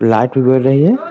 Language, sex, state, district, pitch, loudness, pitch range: Hindi, male, Bihar, Muzaffarpur, 130 Hz, -12 LUFS, 125-170 Hz